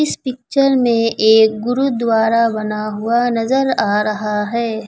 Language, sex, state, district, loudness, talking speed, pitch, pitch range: Hindi, female, Uttar Pradesh, Lucknow, -16 LUFS, 135 wpm, 230 Hz, 215-245 Hz